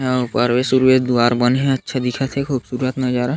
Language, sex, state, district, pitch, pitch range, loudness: Chhattisgarhi, male, Chhattisgarh, Sarguja, 130 Hz, 125-130 Hz, -18 LUFS